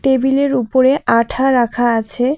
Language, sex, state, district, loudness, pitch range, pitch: Bengali, female, West Bengal, Alipurduar, -15 LUFS, 240-265 Hz, 260 Hz